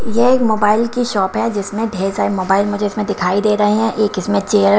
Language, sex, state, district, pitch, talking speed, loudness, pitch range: Hindi, female, Himachal Pradesh, Shimla, 210 Hz, 250 wpm, -16 LUFS, 200-220 Hz